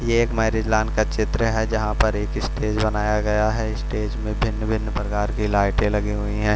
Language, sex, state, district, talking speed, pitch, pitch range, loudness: Hindi, male, Punjab, Fazilka, 200 wpm, 110 Hz, 105-110 Hz, -22 LUFS